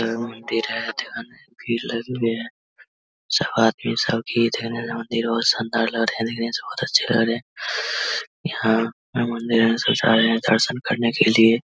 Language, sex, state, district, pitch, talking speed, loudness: Hindi, male, Bihar, Vaishali, 115 Hz, 165 wpm, -21 LUFS